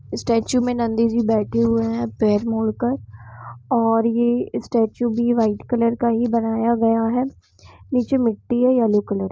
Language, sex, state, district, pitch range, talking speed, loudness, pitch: Hindi, female, Jharkhand, Jamtara, 220-240 Hz, 180 wpm, -20 LUFS, 230 Hz